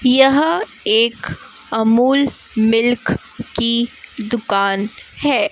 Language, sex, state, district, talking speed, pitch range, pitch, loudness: Hindi, female, Chhattisgarh, Raipur, 75 wpm, 225-270 Hz, 235 Hz, -16 LUFS